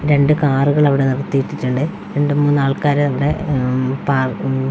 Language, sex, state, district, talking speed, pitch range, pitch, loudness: Malayalam, female, Kerala, Wayanad, 140 wpm, 135-145 Hz, 140 Hz, -17 LUFS